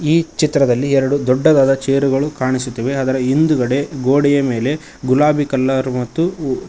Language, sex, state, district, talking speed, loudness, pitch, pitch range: Kannada, male, Karnataka, Koppal, 115 wpm, -16 LUFS, 135 Hz, 130-145 Hz